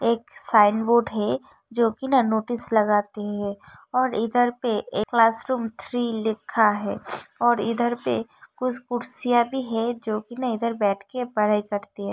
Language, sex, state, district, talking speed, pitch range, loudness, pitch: Hindi, female, Uttar Pradesh, Hamirpur, 160 wpm, 210-245 Hz, -23 LUFS, 230 Hz